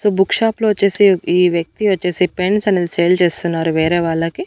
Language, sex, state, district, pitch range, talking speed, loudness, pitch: Telugu, female, Andhra Pradesh, Annamaya, 170-200 Hz, 190 wpm, -15 LUFS, 180 Hz